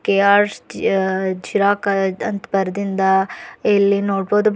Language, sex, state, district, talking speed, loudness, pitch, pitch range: Kannada, female, Karnataka, Bidar, 90 wpm, -18 LUFS, 200 Hz, 190-205 Hz